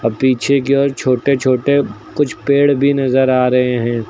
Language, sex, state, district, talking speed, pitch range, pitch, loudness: Hindi, male, Uttar Pradesh, Lucknow, 175 wpm, 125-140 Hz, 130 Hz, -15 LUFS